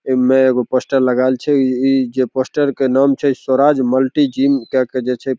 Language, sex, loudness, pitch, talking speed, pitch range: Maithili, male, -15 LUFS, 130 Hz, 190 wpm, 130-135 Hz